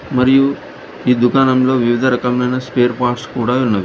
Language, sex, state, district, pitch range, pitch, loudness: Telugu, male, Telangana, Hyderabad, 120-130 Hz, 125 Hz, -15 LUFS